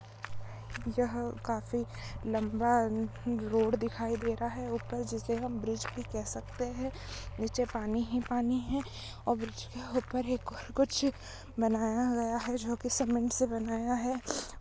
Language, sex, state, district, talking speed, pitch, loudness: Hindi, female, Goa, North and South Goa, 150 wpm, 225 Hz, -34 LUFS